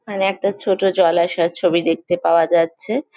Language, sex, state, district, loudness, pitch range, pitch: Bengali, female, West Bengal, Jalpaiguri, -18 LUFS, 170-195 Hz, 175 Hz